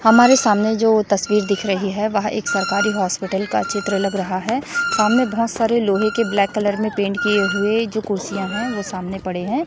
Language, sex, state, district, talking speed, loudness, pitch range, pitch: Hindi, female, Chhattisgarh, Raipur, 210 wpm, -19 LUFS, 200-225 Hz, 205 Hz